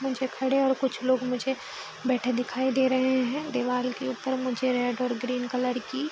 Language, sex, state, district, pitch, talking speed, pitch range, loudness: Hindi, female, Bihar, East Champaran, 255 Hz, 205 wpm, 250-265 Hz, -27 LUFS